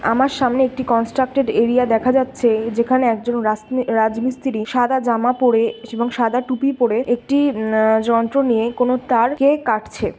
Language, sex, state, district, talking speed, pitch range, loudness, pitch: Bengali, female, West Bengal, Jhargram, 140 wpm, 230-255 Hz, -18 LUFS, 240 Hz